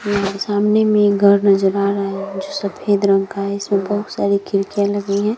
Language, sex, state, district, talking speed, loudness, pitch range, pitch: Hindi, female, Bihar, Vaishali, 210 wpm, -17 LUFS, 195-205 Hz, 200 Hz